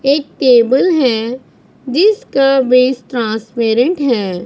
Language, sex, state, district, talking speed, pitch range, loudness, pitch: Hindi, female, Punjab, Pathankot, 95 wpm, 235-280 Hz, -13 LUFS, 255 Hz